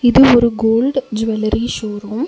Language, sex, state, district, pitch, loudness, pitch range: Tamil, female, Tamil Nadu, Nilgiris, 230 Hz, -15 LUFS, 220-250 Hz